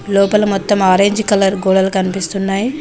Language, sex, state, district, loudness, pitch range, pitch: Telugu, female, Telangana, Mahabubabad, -14 LUFS, 190-205 Hz, 195 Hz